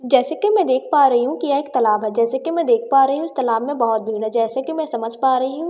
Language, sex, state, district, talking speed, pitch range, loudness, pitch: Hindi, female, Bihar, Katihar, 335 wpm, 230-290 Hz, -18 LUFS, 260 Hz